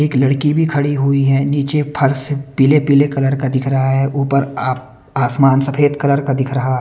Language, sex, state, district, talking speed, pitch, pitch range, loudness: Hindi, male, Bihar, West Champaran, 200 wpm, 135 Hz, 135-145 Hz, -15 LUFS